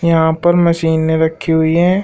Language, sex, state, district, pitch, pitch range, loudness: Hindi, male, Uttar Pradesh, Shamli, 165 Hz, 160-170 Hz, -13 LUFS